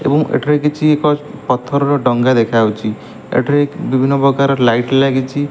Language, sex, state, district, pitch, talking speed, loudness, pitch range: Odia, male, Odisha, Malkangiri, 135 Hz, 120 wpm, -14 LUFS, 125-145 Hz